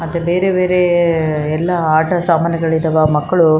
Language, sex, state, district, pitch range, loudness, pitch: Kannada, female, Karnataka, Raichur, 160-175 Hz, -14 LUFS, 165 Hz